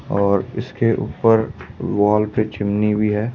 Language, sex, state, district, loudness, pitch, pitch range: Hindi, male, Delhi, New Delhi, -19 LUFS, 105 Hz, 105-115 Hz